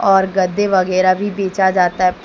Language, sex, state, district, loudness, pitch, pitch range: Hindi, female, Jharkhand, Deoghar, -15 LUFS, 190 Hz, 185-195 Hz